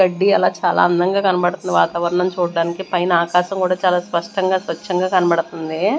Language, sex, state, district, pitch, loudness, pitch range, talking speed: Telugu, female, Andhra Pradesh, Manyam, 180 Hz, -18 LUFS, 170-185 Hz, 130 wpm